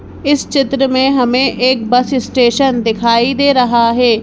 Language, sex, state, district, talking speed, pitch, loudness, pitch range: Hindi, female, Madhya Pradesh, Bhopal, 155 wpm, 255 Hz, -12 LUFS, 235-270 Hz